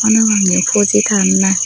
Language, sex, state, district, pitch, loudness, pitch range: Chakma, female, Tripura, Dhalai, 205 Hz, -12 LUFS, 190-210 Hz